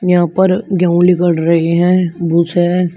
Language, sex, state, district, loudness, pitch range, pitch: Hindi, male, Uttar Pradesh, Shamli, -13 LUFS, 170-180 Hz, 175 Hz